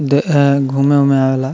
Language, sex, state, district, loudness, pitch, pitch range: Bhojpuri, male, Bihar, Muzaffarpur, -13 LUFS, 140 Hz, 135-140 Hz